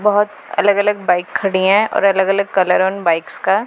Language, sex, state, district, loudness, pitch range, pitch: Hindi, female, Punjab, Pathankot, -15 LUFS, 185-205 Hz, 195 Hz